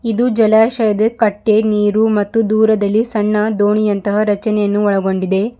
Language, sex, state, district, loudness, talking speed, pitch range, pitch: Kannada, female, Karnataka, Bidar, -14 LUFS, 120 wpm, 205-220 Hz, 215 Hz